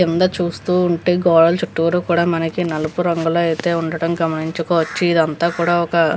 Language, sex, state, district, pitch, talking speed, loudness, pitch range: Telugu, female, Andhra Pradesh, Visakhapatnam, 170 Hz, 175 wpm, -17 LUFS, 165-175 Hz